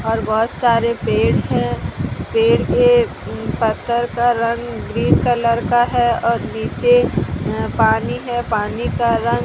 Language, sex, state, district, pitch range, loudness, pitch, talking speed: Hindi, female, Odisha, Sambalpur, 230-245 Hz, -17 LUFS, 235 Hz, 145 wpm